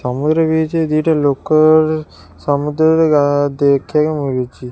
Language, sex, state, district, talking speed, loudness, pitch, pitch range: Odia, female, Odisha, Khordha, 140 wpm, -14 LUFS, 150 Hz, 140-155 Hz